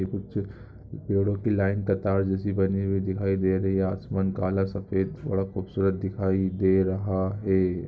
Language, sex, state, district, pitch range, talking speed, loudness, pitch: Hindi, male, Andhra Pradesh, Guntur, 95-100 Hz, 175 wpm, -26 LUFS, 95 Hz